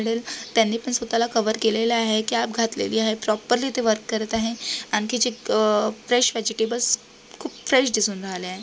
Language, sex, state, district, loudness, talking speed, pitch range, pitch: Marathi, female, Maharashtra, Solapur, -22 LUFS, 165 wpm, 220-235 Hz, 225 Hz